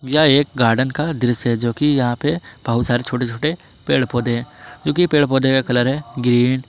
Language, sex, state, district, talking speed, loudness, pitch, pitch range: Hindi, male, Jharkhand, Palamu, 225 wpm, -18 LUFS, 130 Hz, 120-145 Hz